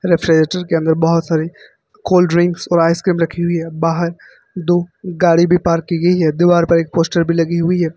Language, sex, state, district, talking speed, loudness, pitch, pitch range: Hindi, male, Uttar Pradesh, Lucknow, 210 wpm, -15 LUFS, 170 Hz, 165-175 Hz